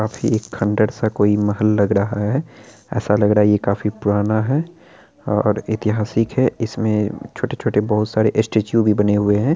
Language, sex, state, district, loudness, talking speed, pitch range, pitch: Hindi, male, Bihar, Araria, -18 LUFS, 170 wpm, 105-115 Hz, 105 Hz